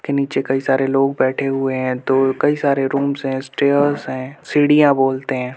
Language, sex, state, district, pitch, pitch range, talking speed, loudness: Hindi, male, Uttar Pradesh, Budaun, 135 Hz, 130-140 Hz, 195 wpm, -17 LUFS